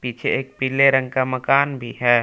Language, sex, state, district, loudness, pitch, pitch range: Hindi, male, Jharkhand, Palamu, -19 LUFS, 130 Hz, 125-135 Hz